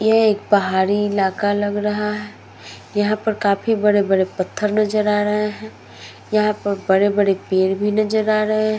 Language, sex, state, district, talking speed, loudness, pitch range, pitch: Hindi, female, Uttar Pradesh, Muzaffarnagar, 170 wpm, -19 LUFS, 195-215 Hz, 210 Hz